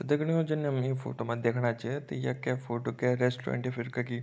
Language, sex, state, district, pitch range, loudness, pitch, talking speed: Garhwali, male, Uttarakhand, Tehri Garhwal, 120-135 Hz, -31 LUFS, 125 Hz, 270 wpm